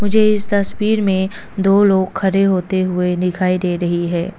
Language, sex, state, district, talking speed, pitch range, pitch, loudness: Hindi, female, Arunachal Pradesh, Papum Pare, 180 wpm, 180-200 Hz, 190 Hz, -16 LUFS